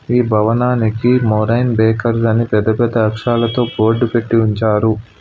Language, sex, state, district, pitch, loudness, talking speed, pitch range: Telugu, male, Telangana, Hyderabad, 115 Hz, -15 LUFS, 125 wpm, 110-120 Hz